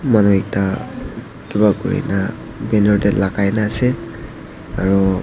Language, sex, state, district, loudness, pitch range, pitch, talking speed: Nagamese, male, Nagaland, Dimapur, -17 LUFS, 95-110 Hz, 100 Hz, 115 wpm